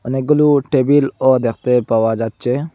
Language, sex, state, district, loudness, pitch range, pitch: Bengali, male, Assam, Hailakandi, -15 LUFS, 115-145 Hz, 130 Hz